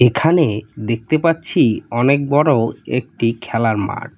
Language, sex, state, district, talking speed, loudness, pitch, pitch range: Bengali, male, West Bengal, Cooch Behar, 115 wpm, -17 LUFS, 120 Hz, 115-150 Hz